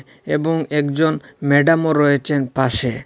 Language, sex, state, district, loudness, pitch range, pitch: Bengali, male, Assam, Hailakandi, -18 LUFS, 135-160 Hz, 145 Hz